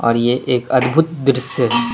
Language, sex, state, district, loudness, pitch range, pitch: Hindi, male, Tripura, West Tripura, -16 LUFS, 120-150 Hz, 125 Hz